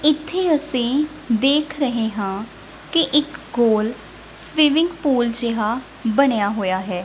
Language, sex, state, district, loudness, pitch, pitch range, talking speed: Punjabi, female, Punjab, Kapurthala, -20 LUFS, 255 Hz, 220-300 Hz, 120 wpm